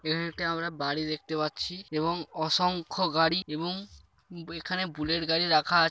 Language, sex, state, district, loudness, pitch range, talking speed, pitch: Bengali, male, West Bengal, Paschim Medinipur, -29 LUFS, 155-175 Hz, 165 wpm, 165 Hz